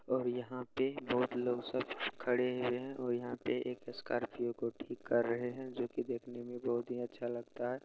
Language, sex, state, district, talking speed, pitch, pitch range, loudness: Hindi, male, Bihar, Supaul, 205 wpm, 125 Hz, 120-125 Hz, -38 LUFS